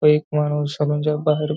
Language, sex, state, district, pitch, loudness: Marathi, male, Maharashtra, Nagpur, 150 Hz, -21 LUFS